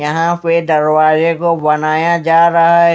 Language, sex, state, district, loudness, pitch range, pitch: Hindi, male, Maharashtra, Mumbai Suburban, -12 LUFS, 155-170 Hz, 165 Hz